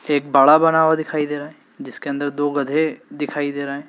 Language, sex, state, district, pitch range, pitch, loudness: Hindi, male, Madhya Pradesh, Dhar, 145-155 Hz, 145 Hz, -19 LUFS